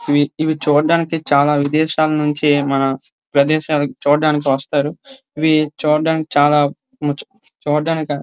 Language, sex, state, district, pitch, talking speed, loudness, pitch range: Telugu, male, Andhra Pradesh, Srikakulam, 150 Hz, 100 wpm, -16 LUFS, 145-155 Hz